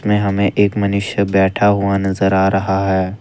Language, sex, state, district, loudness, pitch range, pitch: Hindi, male, Assam, Kamrup Metropolitan, -16 LUFS, 95-100 Hz, 100 Hz